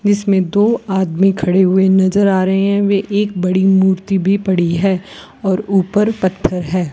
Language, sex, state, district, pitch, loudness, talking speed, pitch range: Hindi, female, Rajasthan, Bikaner, 190 Hz, -14 LUFS, 175 wpm, 185-200 Hz